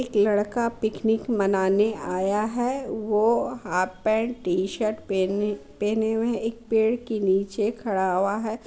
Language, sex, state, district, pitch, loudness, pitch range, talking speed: Hindi, female, Bihar, Muzaffarpur, 215 Hz, -25 LUFS, 195-225 Hz, 130 wpm